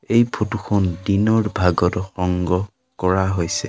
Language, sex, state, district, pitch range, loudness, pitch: Assamese, male, Assam, Sonitpur, 90-105 Hz, -20 LUFS, 95 Hz